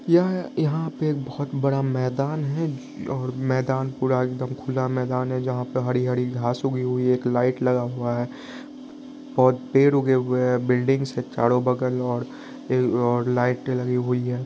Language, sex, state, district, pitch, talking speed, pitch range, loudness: Hindi, male, Bihar, Madhepura, 130 Hz, 165 wpm, 125-135 Hz, -23 LUFS